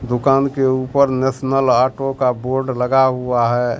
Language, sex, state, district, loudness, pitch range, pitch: Hindi, male, Bihar, Katihar, -17 LUFS, 125-135 Hz, 130 Hz